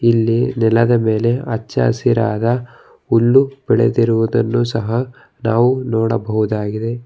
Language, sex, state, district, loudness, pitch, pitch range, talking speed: Kannada, male, Karnataka, Bangalore, -16 LUFS, 115 Hz, 115-120 Hz, 85 wpm